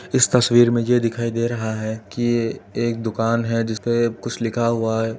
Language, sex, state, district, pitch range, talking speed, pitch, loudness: Hindi, male, Uttar Pradesh, Etah, 115-120 Hz, 210 wpm, 115 Hz, -20 LUFS